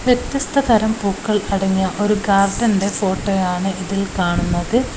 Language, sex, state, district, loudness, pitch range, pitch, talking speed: Malayalam, female, Kerala, Kozhikode, -18 LUFS, 190-220 Hz, 200 Hz, 95 wpm